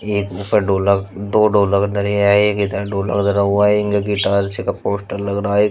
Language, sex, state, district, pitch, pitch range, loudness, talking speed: Hindi, male, Uttar Pradesh, Shamli, 100 Hz, 100-105 Hz, -17 LUFS, 230 wpm